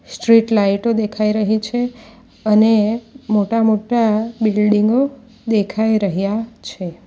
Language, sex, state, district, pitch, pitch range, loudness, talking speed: Gujarati, female, Gujarat, Valsad, 220 Hz, 210-230 Hz, -17 LUFS, 95 wpm